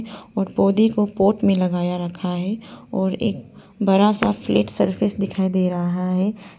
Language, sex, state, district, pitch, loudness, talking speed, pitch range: Hindi, female, Arunachal Pradesh, Papum Pare, 195 Hz, -20 LUFS, 165 wpm, 180-210 Hz